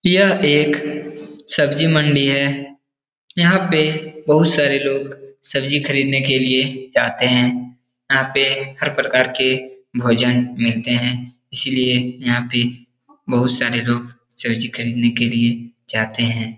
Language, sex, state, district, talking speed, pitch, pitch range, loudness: Hindi, male, Bihar, Jahanabad, 130 wpm, 130 Hz, 120-140 Hz, -16 LUFS